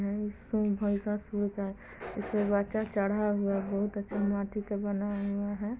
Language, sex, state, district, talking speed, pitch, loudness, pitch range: Hindi, female, Bihar, East Champaran, 135 wpm, 205 Hz, -32 LUFS, 200-210 Hz